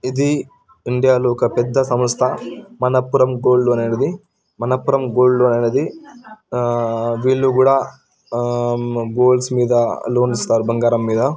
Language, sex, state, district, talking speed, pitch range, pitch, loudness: Telugu, male, Telangana, Karimnagar, 100 wpm, 120-130 Hz, 125 Hz, -17 LUFS